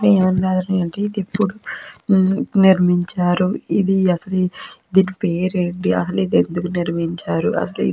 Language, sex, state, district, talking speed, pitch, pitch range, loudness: Telugu, female, Andhra Pradesh, Chittoor, 100 wpm, 185 Hz, 175-190 Hz, -18 LUFS